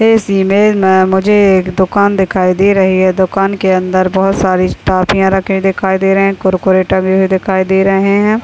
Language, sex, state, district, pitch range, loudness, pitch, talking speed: Hindi, female, Uttar Pradesh, Deoria, 185-195 Hz, -11 LUFS, 190 Hz, 200 wpm